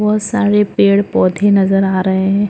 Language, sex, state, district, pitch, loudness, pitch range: Hindi, female, Maharashtra, Dhule, 200 Hz, -13 LUFS, 195-210 Hz